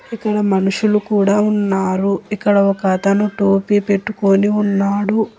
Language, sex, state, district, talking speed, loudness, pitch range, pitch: Telugu, female, Telangana, Hyderabad, 110 wpm, -16 LUFS, 195-210 Hz, 205 Hz